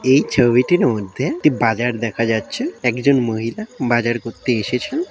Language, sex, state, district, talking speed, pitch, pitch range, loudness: Bengali, male, West Bengal, Dakshin Dinajpur, 150 wpm, 120 Hz, 115-135 Hz, -18 LUFS